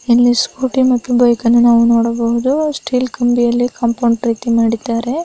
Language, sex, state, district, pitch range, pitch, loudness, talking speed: Kannada, female, Karnataka, Raichur, 235-250 Hz, 240 Hz, -14 LUFS, 125 wpm